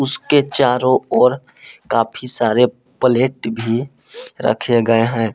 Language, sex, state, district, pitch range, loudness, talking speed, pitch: Hindi, male, Jharkhand, Palamu, 115-130 Hz, -16 LUFS, 125 wpm, 125 Hz